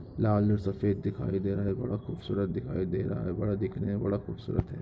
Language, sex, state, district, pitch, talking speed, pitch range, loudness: Hindi, male, Goa, North and South Goa, 100 Hz, 235 wpm, 100-110 Hz, -31 LUFS